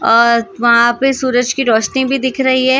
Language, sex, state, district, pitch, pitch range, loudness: Hindi, female, Maharashtra, Gondia, 250 Hz, 235-265 Hz, -13 LUFS